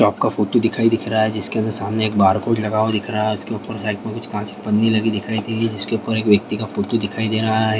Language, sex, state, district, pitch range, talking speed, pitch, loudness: Hindi, male, Bihar, Vaishali, 105-110 Hz, 300 wpm, 110 Hz, -19 LUFS